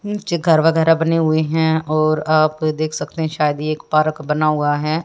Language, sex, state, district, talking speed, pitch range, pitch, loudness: Hindi, female, Haryana, Jhajjar, 200 wpm, 155-160 Hz, 155 Hz, -17 LUFS